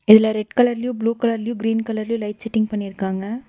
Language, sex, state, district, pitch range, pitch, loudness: Tamil, female, Tamil Nadu, Nilgiris, 215-230 Hz, 225 Hz, -21 LUFS